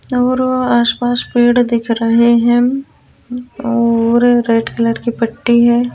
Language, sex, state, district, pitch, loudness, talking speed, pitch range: Hindi, female, Uttar Pradesh, Jyotiba Phule Nagar, 240 Hz, -13 LUFS, 150 wpm, 235-245 Hz